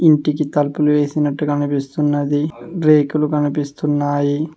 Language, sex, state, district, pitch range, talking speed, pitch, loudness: Telugu, male, Telangana, Mahabubabad, 145-150 Hz, 80 wpm, 150 Hz, -18 LUFS